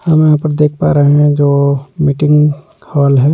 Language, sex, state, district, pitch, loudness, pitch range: Hindi, male, Delhi, New Delhi, 150 Hz, -11 LUFS, 140-150 Hz